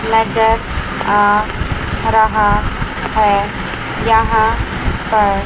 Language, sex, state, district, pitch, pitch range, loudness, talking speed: Hindi, male, Chandigarh, Chandigarh, 220 Hz, 205-225 Hz, -15 LUFS, 65 wpm